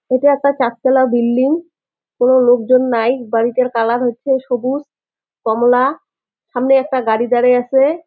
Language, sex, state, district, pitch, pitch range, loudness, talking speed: Bengali, female, West Bengal, Jalpaiguri, 255 Hz, 245-270 Hz, -15 LUFS, 125 wpm